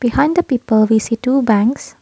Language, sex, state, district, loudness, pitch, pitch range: English, female, Assam, Kamrup Metropolitan, -15 LUFS, 240 Hz, 220-270 Hz